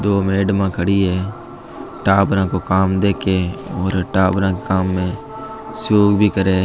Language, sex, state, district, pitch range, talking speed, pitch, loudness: Marwari, male, Rajasthan, Nagaur, 95-100 Hz, 155 wpm, 95 Hz, -17 LUFS